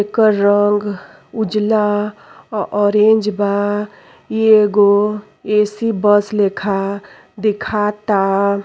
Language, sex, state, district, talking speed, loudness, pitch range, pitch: Bhojpuri, female, Uttar Pradesh, Ghazipur, 85 wpm, -16 LUFS, 205-215 Hz, 205 Hz